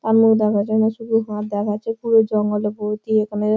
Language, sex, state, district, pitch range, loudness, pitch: Bengali, female, West Bengal, Malda, 210-225 Hz, -19 LUFS, 215 Hz